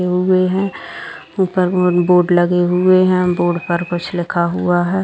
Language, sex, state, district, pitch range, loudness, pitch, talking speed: Hindi, female, Bihar, Gaya, 175-185 Hz, -15 LUFS, 180 Hz, 165 wpm